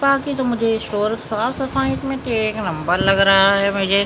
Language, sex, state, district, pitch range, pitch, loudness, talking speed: Hindi, male, Maharashtra, Mumbai Suburban, 195-265 Hz, 220 Hz, -18 LUFS, 235 wpm